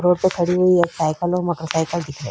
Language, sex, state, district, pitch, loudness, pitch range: Hindi, female, Chhattisgarh, Korba, 175 Hz, -19 LUFS, 160-180 Hz